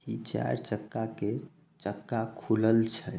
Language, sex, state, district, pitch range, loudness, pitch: Maithili, male, Bihar, Samastipur, 105-115 Hz, -31 LUFS, 110 Hz